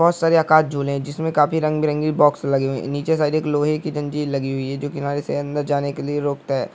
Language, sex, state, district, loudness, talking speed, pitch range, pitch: Hindi, male, West Bengal, Jhargram, -20 LUFS, 275 wpm, 140-155 Hz, 145 Hz